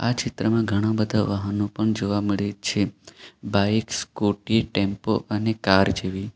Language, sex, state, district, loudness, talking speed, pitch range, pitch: Gujarati, male, Gujarat, Valsad, -23 LUFS, 150 wpm, 100-110 Hz, 105 Hz